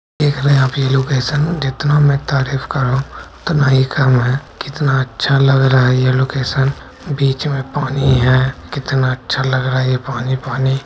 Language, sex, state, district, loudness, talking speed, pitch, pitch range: Hindi, male, Bihar, Gopalganj, -15 LUFS, 190 wpm, 135 Hz, 130-140 Hz